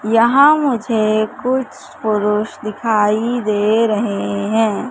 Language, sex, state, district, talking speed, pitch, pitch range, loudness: Hindi, female, Madhya Pradesh, Katni, 100 wpm, 220 Hz, 210-235 Hz, -16 LUFS